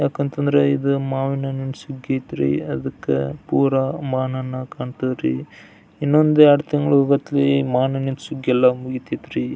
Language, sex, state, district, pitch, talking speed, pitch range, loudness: Kannada, male, Karnataka, Belgaum, 135 Hz, 115 wpm, 130-140 Hz, -20 LUFS